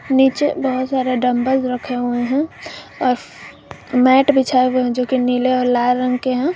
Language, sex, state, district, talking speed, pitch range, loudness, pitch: Hindi, female, Jharkhand, Garhwa, 185 wpm, 250-265 Hz, -17 LUFS, 255 Hz